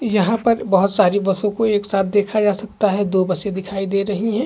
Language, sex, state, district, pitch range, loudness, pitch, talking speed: Hindi, male, Chhattisgarh, Korba, 195-215 Hz, -18 LUFS, 205 Hz, 240 wpm